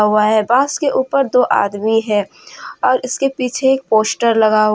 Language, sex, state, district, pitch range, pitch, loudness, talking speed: Hindi, female, Jharkhand, Deoghar, 215-265 Hz, 240 Hz, -15 LUFS, 175 wpm